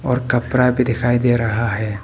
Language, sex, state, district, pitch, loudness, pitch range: Hindi, male, Arunachal Pradesh, Papum Pare, 120 Hz, -18 LUFS, 115-125 Hz